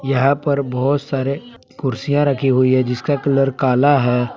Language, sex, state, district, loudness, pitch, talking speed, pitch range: Hindi, male, Jharkhand, Palamu, -17 LUFS, 135 Hz, 165 wpm, 130-145 Hz